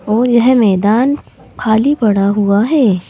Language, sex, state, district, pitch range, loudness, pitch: Hindi, female, Madhya Pradesh, Bhopal, 205-250 Hz, -12 LUFS, 220 Hz